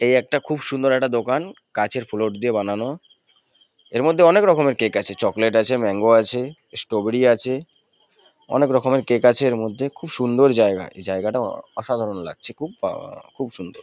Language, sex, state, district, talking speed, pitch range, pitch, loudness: Bengali, male, West Bengal, North 24 Parganas, 175 wpm, 110-140 Hz, 125 Hz, -20 LUFS